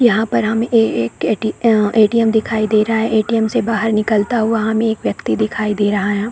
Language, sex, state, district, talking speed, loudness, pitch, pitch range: Hindi, female, Chhattisgarh, Korba, 245 wpm, -16 LUFS, 220 Hz, 215-225 Hz